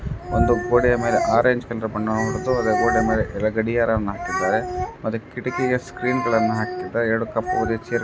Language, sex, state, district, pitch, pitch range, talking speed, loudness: Kannada, male, Karnataka, Dharwad, 115 Hz, 110-120 Hz, 90 wpm, -21 LUFS